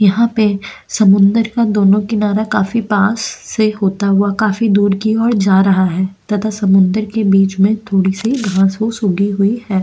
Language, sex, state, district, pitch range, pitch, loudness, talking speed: Hindi, female, Goa, North and South Goa, 195-215 Hz, 205 Hz, -14 LUFS, 185 wpm